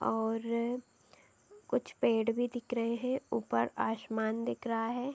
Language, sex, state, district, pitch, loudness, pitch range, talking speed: Hindi, female, Uttar Pradesh, Deoria, 230 Hz, -34 LUFS, 225-245 Hz, 150 wpm